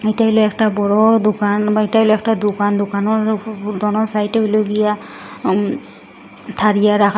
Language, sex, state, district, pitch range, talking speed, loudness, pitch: Bengali, female, Assam, Hailakandi, 210-220 Hz, 160 wpm, -16 LUFS, 215 Hz